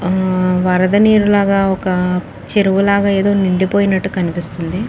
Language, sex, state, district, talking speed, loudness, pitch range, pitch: Telugu, female, Telangana, Nalgonda, 100 wpm, -14 LUFS, 180-200 Hz, 190 Hz